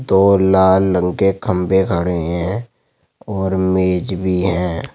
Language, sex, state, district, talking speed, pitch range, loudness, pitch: Hindi, male, Uttar Pradesh, Jyotiba Phule Nagar, 135 wpm, 90-95 Hz, -16 LUFS, 95 Hz